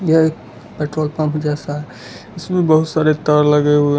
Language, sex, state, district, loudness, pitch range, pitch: Hindi, male, Gujarat, Valsad, -16 LUFS, 150-160 Hz, 150 Hz